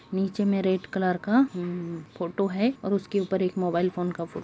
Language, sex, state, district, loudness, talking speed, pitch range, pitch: Hindi, female, Jharkhand, Sahebganj, -27 LUFS, 190 wpm, 175-200 Hz, 190 Hz